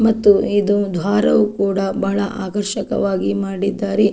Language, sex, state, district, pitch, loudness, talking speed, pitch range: Kannada, female, Karnataka, Dakshina Kannada, 200 Hz, -18 LUFS, 115 wpm, 195-205 Hz